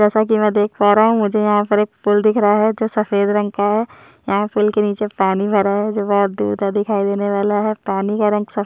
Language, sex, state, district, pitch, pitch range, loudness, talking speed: Hindi, male, Chhattisgarh, Sukma, 210 Hz, 200-210 Hz, -17 LUFS, 275 wpm